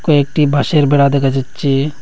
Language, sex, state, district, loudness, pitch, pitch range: Bengali, male, Assam, Hailakandi, -14 LUFS, 140 Hz, 140-150 Hz